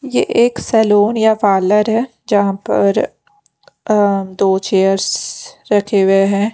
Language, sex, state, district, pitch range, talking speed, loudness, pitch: Hindi, female, Punjab, Pathankot, 195-220 Hz, 130 wpm, -14 LUFS, 205 Hz